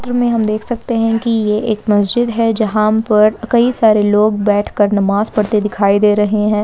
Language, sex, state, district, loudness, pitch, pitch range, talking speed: Hindi, female, Uttarakhand, Tehri Garhwal, -14 LUFS, 215 Hz, 210-225 Hz, 210 wpm